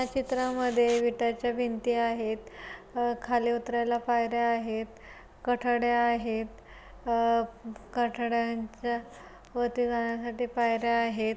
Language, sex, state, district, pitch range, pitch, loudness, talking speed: Marathi, female, Maharashtra, Pune, 230-240 Hz, 235 Hz, -29 LUFS, 95 wpm